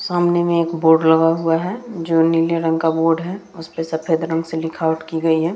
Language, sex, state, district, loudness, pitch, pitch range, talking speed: Hindi, female, Bihar, Vaishali, -18 LUFS, 165 Hz, 160-170 Hz, 250 wpm